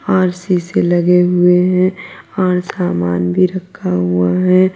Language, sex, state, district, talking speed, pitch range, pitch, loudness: Hindi, female, Uttar Pradesh, Lalitpur, 140 wpm, 175-185 Hz, 180 Hz, -14 LUFS